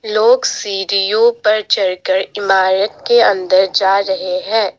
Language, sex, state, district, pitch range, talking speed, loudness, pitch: Hindi, female, Assam, Sonitpur, 190-220 Hz, 125 wpm, -14 LUFS, 200 Hz